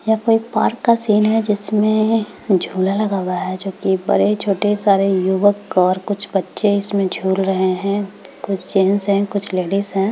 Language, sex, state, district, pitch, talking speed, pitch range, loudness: Hindi, female, Bihar, Madhepura, 200 Hz, 165 wpm, 190-210 Hz, -17 LUFS